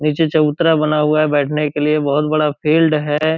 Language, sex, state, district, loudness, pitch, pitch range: Hindi, male, Bihar, Purnia, -15 LUFS, 150 Hz, 150-155 Hz